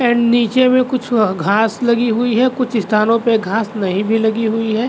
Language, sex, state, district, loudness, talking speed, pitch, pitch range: Hindi, male, Chhattisgarh, Balrampur, -15 LUFS, 220 wpm, 230 Hz, 220-240 Hz